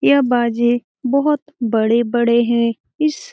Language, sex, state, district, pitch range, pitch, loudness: Hindi, female, Bihar, Jamui, 235-285 Hz, 240 Hz, -17 LUFS